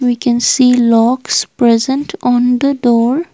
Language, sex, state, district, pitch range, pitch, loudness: English, female, Assam, Kamrup Metropolitan, 240-260 Hz, 245 Hz, -12 LUFS